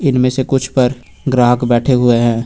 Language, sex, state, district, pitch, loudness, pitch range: Hindi, male, Uttar Pradesh, Lucknow, 125 Hz, -14 LUFS, 120-130 Hz